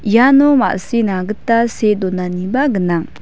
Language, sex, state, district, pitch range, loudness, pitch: Garo, female, Meghalaya, West Garo Hills, 185-240 Hz, -15 LUFS, 215 Hz